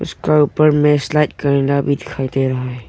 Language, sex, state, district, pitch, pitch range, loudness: Hindi, male, Arunachal Pradesh, Longding, 140 Hz, 135-150 Hz, -16 LUFS